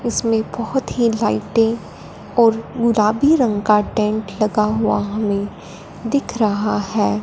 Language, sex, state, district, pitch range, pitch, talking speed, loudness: Hindi, female, Punjab, Fazilka, 210-230 Hz, 215 Hz, 125 wpm, -18 LUFS